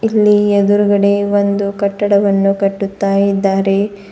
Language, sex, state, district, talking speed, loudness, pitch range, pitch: Kannada, female, Karnataka, Bidar, 85 wpm, -13 LUFS, 195-205 Hz, 200 Hz